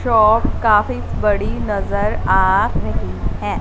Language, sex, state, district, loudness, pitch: Hindi, female, Punjab, Fazilka, -17 LUFS, 105 Hz